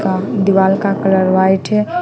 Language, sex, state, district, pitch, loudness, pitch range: Hindi, female, West Bengal, Alipurduar, 195 Hz, -14 LUFS, 190-205 Hz